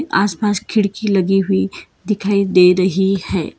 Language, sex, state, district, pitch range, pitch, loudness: Hindi, female, Karnataka, Bangalore, 185-205 Hz, 195 Hz, -16 LUFS